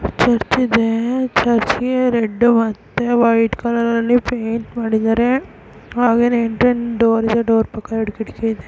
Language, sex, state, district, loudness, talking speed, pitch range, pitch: Kannada, female, Karnataka, Shimoga, -17 LUFS, 130 wpm, 225-240 Hz, 230 Hz